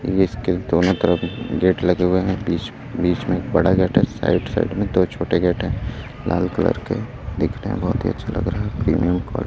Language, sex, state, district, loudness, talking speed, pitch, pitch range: Hindi, male, Chhattisgarh, Raipur, -21 LUFS, 220 wpm, 95 Hz, 90-110 Hz